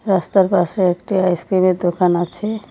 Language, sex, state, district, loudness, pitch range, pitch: Bengali, female, West Bengal, Cooch Behar, -17 LUFS, 175-195 Hz, 185 Hz